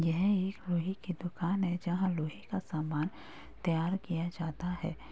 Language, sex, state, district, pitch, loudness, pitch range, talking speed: Hindi, female, Uttar Pradesh, Jyotiba Phule Nagar, 175 Hz, -34 LUFS, 165-190 Hz, 165 wpm